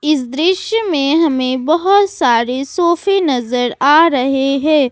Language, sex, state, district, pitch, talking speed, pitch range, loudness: Hindi, female, Jharkhand, Ranchi, 295 Hz, 135 wpm, 260-345 Hz, -14 LUFS